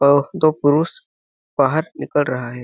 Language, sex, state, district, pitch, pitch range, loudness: Hindi, male, Chhattisgarh, Balrampur, 140 Hz, 125-155 Hz, -19 LUFS